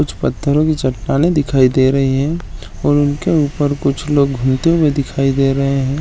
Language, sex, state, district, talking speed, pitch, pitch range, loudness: Hindi, male, Jharkhand, Jamtara, 180 wpm, 140 Hz, 135-150 Hz, -15 LUFS